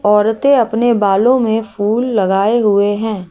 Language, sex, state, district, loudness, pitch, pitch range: Hindi, female, Rajasthan, Jaipur, -13 LUFS, 215 Hz, 205-230 Hz